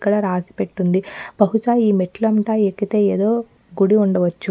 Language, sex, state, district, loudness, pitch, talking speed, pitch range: Telugu, female, Telangana, Nalgonda, -18 LUFS, 205 Hz, 120 wpm, 190-215 Hz